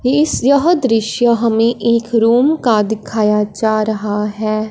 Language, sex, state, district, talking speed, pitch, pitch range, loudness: Hindi, female, Punjab, Fazilka, 140 wpm, 225 Hz, 215-240 Hz, -14 LUFS